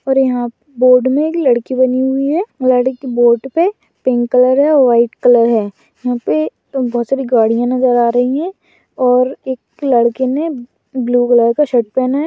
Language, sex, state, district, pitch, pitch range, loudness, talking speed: Bhojpuri, female, Uttar Pradesh, Gorakhpur, 255 Hz, 240-270 Hz, -14 LUFS, 175 wpm